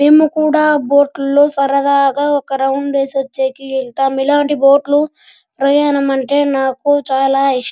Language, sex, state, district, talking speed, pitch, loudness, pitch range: Telugu, male, Andhra Pradesh, Anantapur, 125 wpm, 275 Hz, -14 LUFS, 270-290 Hz